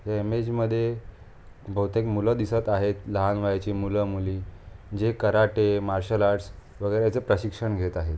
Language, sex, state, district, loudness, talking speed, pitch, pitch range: Marathi, male, Maharashtra, Aurangabad, -26 LUFS, 145 wpm, 105 Hz, 100-110 Hz